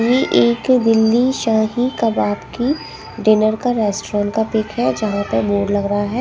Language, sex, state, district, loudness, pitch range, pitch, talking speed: Hindi, female, Punjab, Pathankot, -17 LUFS, 205-240 Hz, 220 Hz, 185 wpm